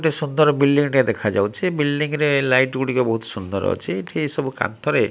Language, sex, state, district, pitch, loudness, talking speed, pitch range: Odia, male, Odisha, Malkangiri, 140 Hz, -20 LUFS, 210 wpm, 120-150 Hz